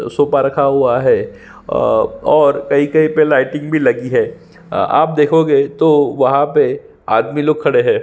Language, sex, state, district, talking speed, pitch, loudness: Hindi, male, Chhattisgarh, Sukma, 155 wpm, 150 Hz, -14 LUFS